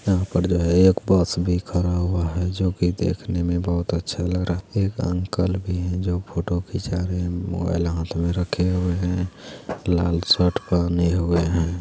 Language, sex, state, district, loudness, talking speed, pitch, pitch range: Hindi, male, Bihar, Lakhisarai, -22 LUFS, 200 wpm, 90 Hz, 85-90 Hz